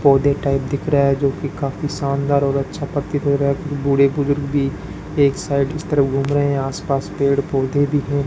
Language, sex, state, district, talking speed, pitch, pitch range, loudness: Hindi, male, Rajasthan, Bikaner, 220 wpm, 140 Hz, 140-145 Hz, -19 LUFS